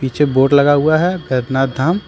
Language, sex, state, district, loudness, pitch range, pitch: Hindi, male, Jharkhand, Deoghar, -14 LUFS, 130-160 Hz, 145 Hz